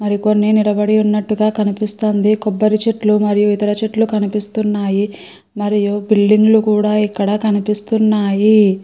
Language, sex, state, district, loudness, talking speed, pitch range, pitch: Telugu, female, Andhra Pradesh, Srikakulam, -15 LUFS, 100 wpm, 205-215 Hz, 210 Hz